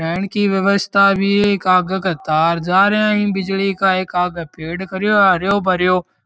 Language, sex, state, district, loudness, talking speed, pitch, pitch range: Marwari, male, Rajasthan, Churu, -16 LUFS, 190 wpm, 190 Hz, 180-200 Hz